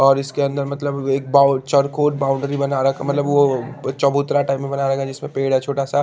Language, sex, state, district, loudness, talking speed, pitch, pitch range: Hindi, male, Chandigarh, Chandigarh, -19 LUFS, 230 wpm, 140 Hz, 135-140 Hz